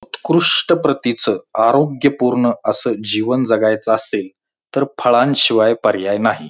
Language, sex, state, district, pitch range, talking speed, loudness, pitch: Marathi, male, Maharashtra, Pune, 110-140 Hz, 110 wpm, -16 LUFS, 120 Hz